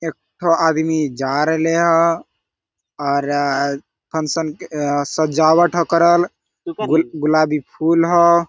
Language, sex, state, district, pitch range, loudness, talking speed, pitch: Hindi, male, Jharkhand, Sahebganj, 145-170 Hz, -17 LUFS, 115 wpm, 160 Hz